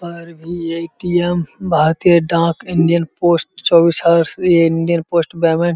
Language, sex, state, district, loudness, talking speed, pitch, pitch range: Hindi, male, Uttar Pradesh, Muzaffarnagar, -15 LUFS, 85 wpm, 170 Hz, 165-175 Hz